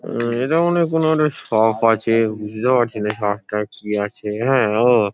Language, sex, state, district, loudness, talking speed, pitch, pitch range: Bengali, male, West Bengal, Paschim Medinipur, -19 LUFS, 200 wpm, 115 Hz, 105-130 Hz